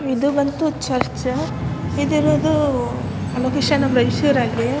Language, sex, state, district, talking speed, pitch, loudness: Kannada, male, Karnataka, Raichur, 110 wpm, 265 Hz, -19 LUFS